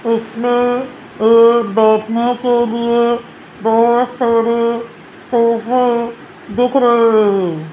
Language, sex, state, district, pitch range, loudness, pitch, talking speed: Hindi, female, Rajasthan, Jaipur, 225-245 Hz, -14 LUFS, 235 Hz, 85 wpm